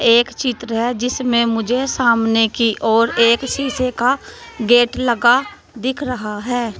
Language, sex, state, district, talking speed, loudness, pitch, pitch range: Hindi, female, Uttar Pradesh, Saharanpur, 140 wpm, -17 LUFS, 240 Hz, 230-255 Hz